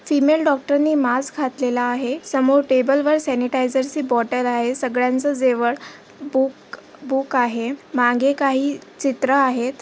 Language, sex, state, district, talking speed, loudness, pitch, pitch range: Marathi, female, Maharashtra, Aurangabad, 135 wpm, -19 LUFS, 265 Hz, 250-280 Hz